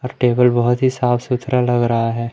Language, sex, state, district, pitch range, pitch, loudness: Hindi, male, Madhya Pradesh, Umaria, 120-125 Hz, 125 Hz, -17 LUFS